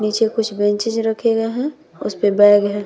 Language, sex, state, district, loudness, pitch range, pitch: Hindi, female, Bihar, Vaishali, -17 LUFS, 205-225 Hz, 220 Hz